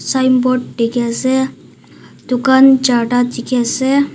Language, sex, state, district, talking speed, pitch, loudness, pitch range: Nagamese, female, Nagaland, Dimapur, 145 wpm, 255 Hz, -14 LUFS, 240-265 Hz